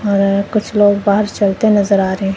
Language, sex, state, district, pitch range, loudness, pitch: Hindi, male, Punjab, Kapurthala, 195-205 Hz, -14 LUFS, 200 Hz